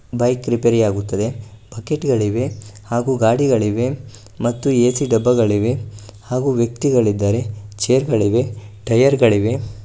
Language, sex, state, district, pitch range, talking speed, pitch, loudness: Kannada, male, Karnataka, Gulbarga, 105-125 Hz, 95 wpm, 115 Hz, -18 LUFS